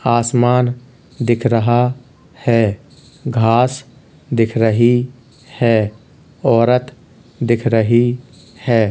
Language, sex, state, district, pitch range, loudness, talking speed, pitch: Hindi, male, Uttar Pradesh, Hamirpur, 115-130 Hz, -16 LUFS, 80 wpm, 120 Hz